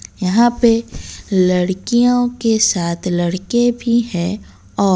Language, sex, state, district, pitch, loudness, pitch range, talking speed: Hindi, female, Odisha, Malkangiri, 210 Hz, -16 LUFS, 185-235 Hz, 110 wpm